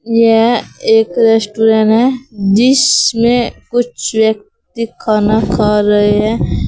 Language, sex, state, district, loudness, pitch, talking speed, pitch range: Hindi, female, Uttar Pradesh, Saharanpur, -12 LUFS, 225 Hz, 100 wpm, 215-245 Hz